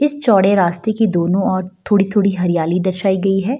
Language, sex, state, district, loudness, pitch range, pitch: Hindi, female, Bihar, Gaya, -16 LUFS, 185-205 Hz, 195 Hz